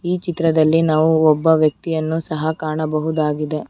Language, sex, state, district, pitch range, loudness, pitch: Kannada, female, Karnataka, Bangalore, 155-160 Hz, -18 LUFS, 160 Hz